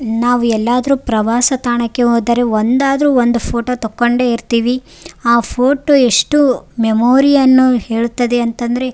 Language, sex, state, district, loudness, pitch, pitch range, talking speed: Kannada, female, Karnataka, Raichur, -13 LUFS, 240 Hz, 235-255 Hz, 105 wpm